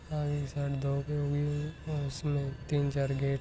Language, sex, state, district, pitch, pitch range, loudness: Hindi, male, Rajasthan, Nagaur, 145 Hz, 140-145 Hz, -33 LUFS